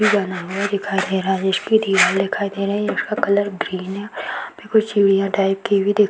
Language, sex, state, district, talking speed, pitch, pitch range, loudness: Hindi, female, Bihar, Jahanabad, 255 wpm, 200 Hz, 195-205 Hz, -19 LUFS